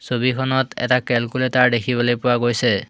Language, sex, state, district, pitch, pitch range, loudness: Assamese, male, Assam, Hailakandi, 125 Hz, 120-130 Hz, -19 LUFS